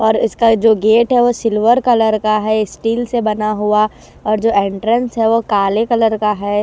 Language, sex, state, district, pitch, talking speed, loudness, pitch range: Hindi, female, Haryana, Rohtak, 220 Hz, 210 wpm, -14 LUFS, 215-230 Hz